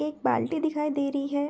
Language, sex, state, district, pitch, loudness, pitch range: Hindi, female, Bihar, Begusarai, 295 Hz, -27 LUFS, 280-300 Hz